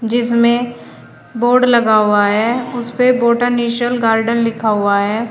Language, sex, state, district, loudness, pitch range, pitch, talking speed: Hindi, female, Uttar Pradesh, Shamli, -14 LUFS, 225-240 Hz, 235 Hz, 135 wpm